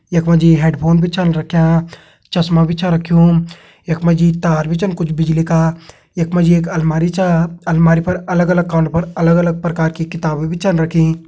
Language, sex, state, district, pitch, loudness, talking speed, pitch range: Hindi, male, Uttarakhand, Tehri Garhwal, 165 Hz, -14 LUFS, 215 wpm, 160-170 Hz